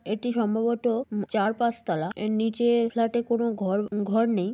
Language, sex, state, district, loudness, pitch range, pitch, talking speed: Bengali, female, West Bengal, North 24 Parganas, -26 LUFS, 205-235 Hz, 225 Hz, 185 wpm